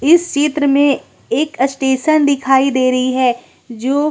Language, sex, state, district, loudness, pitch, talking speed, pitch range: Hindi, female, Chhattisgarh, Korba, -15 LUFS, 275 Hz, 145 wpm, 260-290 Hz